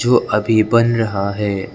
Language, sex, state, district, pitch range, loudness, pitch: Hindi, male, Arunachal Pradesh, Lower Dibang Valley, 100-115 Hz, -16 LUFS, 110 Hz